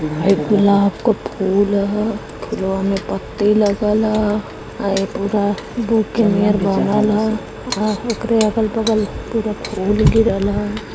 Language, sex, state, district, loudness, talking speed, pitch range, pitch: Hindi, male, Uttar Pradesh, Varanasi, -18 LUFS, 120 wpm, 200-220 Hz, 210 Hz